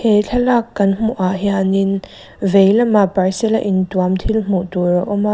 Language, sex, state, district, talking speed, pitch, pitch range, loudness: Mizo, female, Mizoram, Aizawl, 180 wpm, 195 Hz, 190-220 Hz, -16 LUFS